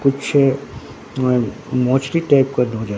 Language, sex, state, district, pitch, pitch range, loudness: Hindi, male, Bihar, Katihar, 130 Hz, 125-140 Hz, -18 LUFS